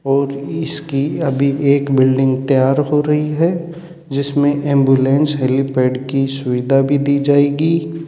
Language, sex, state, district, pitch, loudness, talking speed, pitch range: Hindi, male, Rajasthan, Jaipur, 140 Hz, -16 LUFS, 125 wpm, 135-150 Hz